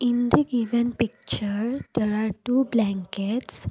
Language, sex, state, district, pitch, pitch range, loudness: English, female, Assam, Kamrup Metropolitan, 235 Hz, 210-245 Hz, -25 LUFS